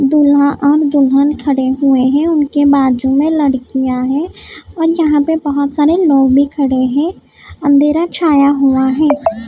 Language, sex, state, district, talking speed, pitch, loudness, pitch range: Hindi, female, Maharashtra, Mumbai Suburban, 160 wpm, 285 Hz, -12 LUFS, 270-300 Hz